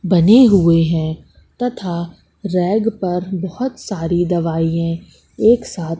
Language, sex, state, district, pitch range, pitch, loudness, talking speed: Hindi, female, Madhya Pradesh, Katni, 165-205 Hz, 180 Hz, -16 LUFS, 110 wpm